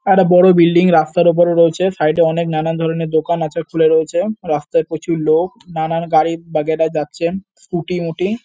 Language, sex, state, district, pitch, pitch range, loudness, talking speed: Bengali, male, West Bengal, North 24 Parganas, 165 Hz, 160-175 Hz, -15 LUFS, 170 wpm